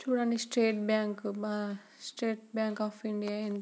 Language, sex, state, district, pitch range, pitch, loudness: Telugu, female, Andhra Pradesh, Srikakulam, 210-230 Hz, 215 Hz, -33 LUFS